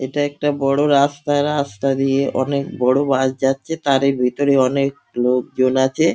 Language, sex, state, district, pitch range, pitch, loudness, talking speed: Bengali, male, West Bengal, Dakshin Dinajpur, 130-145 Hz, 140 Hz, -18 LUFS, 145 wpm